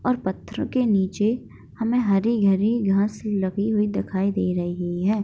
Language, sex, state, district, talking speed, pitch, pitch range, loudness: Hindi, female, Bihar, Begusarai, 150 wpm, 205 Hz, 190-225 Hz, -23 LUFS